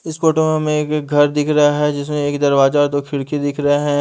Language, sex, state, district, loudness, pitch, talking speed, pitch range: Hindi, male, Haryana, Charkhi Dadri, -16 LUFS, 145 Hz, 255 wpm, 145-150 Hz